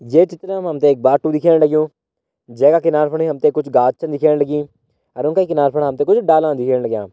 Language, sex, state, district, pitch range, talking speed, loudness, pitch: Hindi, male, Uttarakhand, Tehri Garhwal, 145-165 Hz, 250 wpm, -16 LUFS, 155 Hz